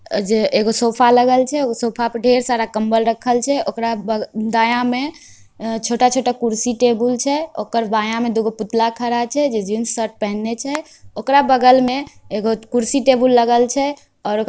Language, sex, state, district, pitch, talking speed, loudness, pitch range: Angika, female, Bihar, Begusarai, 235 Hz, 165 wpm, -17 LUFS, 225-255 Hz